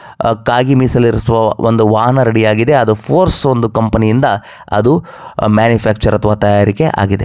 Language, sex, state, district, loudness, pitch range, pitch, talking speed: Kannada, male, Karnataka, Bellary, -12 LUFS, 110-120 Hz, 110 Hz, 140 wpm